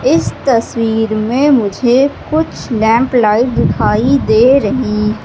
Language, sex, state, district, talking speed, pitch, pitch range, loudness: Hindi, female, Madhya Pradesh, Katni, 105 wpm, 235 Hz, 220-265 Hz, -12 LUFS